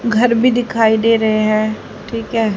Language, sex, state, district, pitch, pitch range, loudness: Hindi, female, Haryana, Rohtak, 225 Hz, 215-230 Hz, -15 LUFS